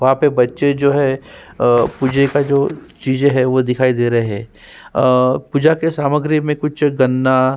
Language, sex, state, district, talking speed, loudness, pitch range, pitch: Hindi, male, Uttarakhand, Tehri Garhwal, 190 wpm, -15 LUFS, 125-145 Hz, 130 Hz